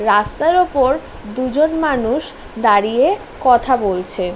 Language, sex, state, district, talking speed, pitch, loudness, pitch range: Bengali, female, West Bengal, North 24 Parganas, 110 wpm, 255 Hz, -16 LUFS, 210-285 Hz